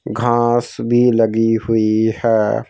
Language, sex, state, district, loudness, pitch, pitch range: Hindi, male, Madhya Pradesh, Bhopal, -16 LUFS, 115 Hz, 110-120 Hz